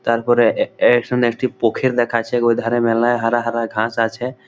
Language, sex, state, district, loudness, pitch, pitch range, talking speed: Bengali, male, West Bengal, Malda, -17 LUFS, 120 Hz, 115-120 Hz, 160 wpm